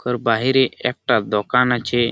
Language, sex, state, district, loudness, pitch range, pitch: Bengali, male, West Bengal, Malda, -18 LUFS, 115-125 Hz, 125 Hz